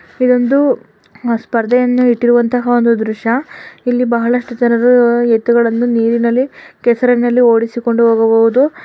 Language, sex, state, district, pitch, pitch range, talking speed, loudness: Kannada, female, Karnataka, Dakshina Kannada, 240 Hz, 230-245 Hz, 95 wpm, -13 LUFS